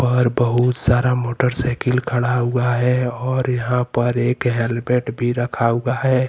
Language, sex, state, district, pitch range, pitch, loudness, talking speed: Hindi, male, Jharkhand, Deoghar, 120-125 Hz, 125 Hz, -19 LUFS, 150 wpm